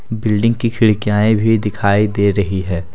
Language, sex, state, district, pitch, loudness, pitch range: Hindi, male, Jharkhand, Deoghar, 105 Hz, -15 LUFS, 100-110 Hz